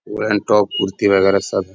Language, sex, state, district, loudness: Hindi, male, Bihar, Bhagalpur, -16 LUFS